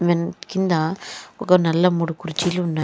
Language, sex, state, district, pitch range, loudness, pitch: Telugu, female, Andhra Pradesh, Chittoor, 165-180 Hz, -20 LUFS, 170 Hz